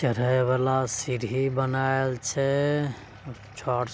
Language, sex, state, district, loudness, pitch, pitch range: Angika, male, Bihar, Begusarai, -26 LUFS, 130 Hz, 125-135 Hz